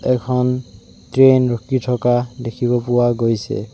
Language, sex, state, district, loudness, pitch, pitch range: Assamese, male, Assam, Sonitpur, -17 LUFS, 120 Hz, 115-125 Hz